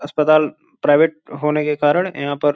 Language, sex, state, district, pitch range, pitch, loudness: Hindi, male, Uttar Pradesh, Gorakhpur, 145-155 Hz, 150 Hz, -17 LUFS